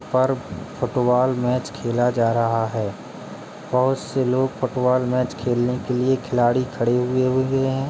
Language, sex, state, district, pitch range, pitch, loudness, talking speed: Hindi, male, Uttar Pradesh, Jalaun, 120-130 Hz, 125 Hz, -21 LUFS, 145 wpm